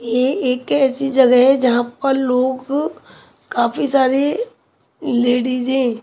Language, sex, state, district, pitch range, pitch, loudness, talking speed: Hindi, female, Punjab, Kapurthala, 250-270 Hz, 260 Hz, -17 LUFS, 120 wpm